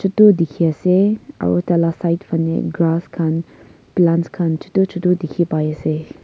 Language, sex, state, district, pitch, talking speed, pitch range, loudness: Nagamese, female, Nagaland, Kohima, 170 Hz, 125 wpm, 160-180 Hz, -18 LUFS